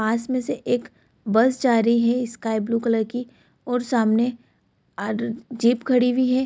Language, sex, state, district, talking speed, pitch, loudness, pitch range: Hindi, female, Bihar, Darbhanga, 175 wpm, 240 Hz, -22 LUFS, 225-250 Hz